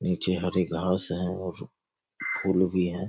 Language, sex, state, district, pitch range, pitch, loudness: Hindi, male, Bihar, Saharsa, 90-95 Hz, 90 Hz, -28 LUFS